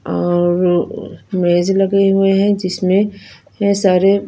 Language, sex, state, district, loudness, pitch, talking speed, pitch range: Hindi, female, Punjab, Fazilka, -15 LUFS, 195 Hz, 110 wpm, 180-195 Hz